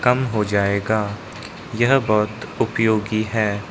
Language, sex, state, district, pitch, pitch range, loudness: Hindi, male, Arunachal Pradesh, Lower Dibang Valley, 110 Hz, 105-110 Hz, -20 LUFS